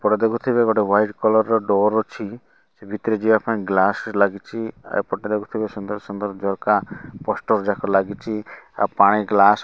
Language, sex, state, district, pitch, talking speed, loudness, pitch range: Odia, male, Odisha, Malkangiri, 105 Hz, 160 wpm, -20 LUFS, 100-110 Hz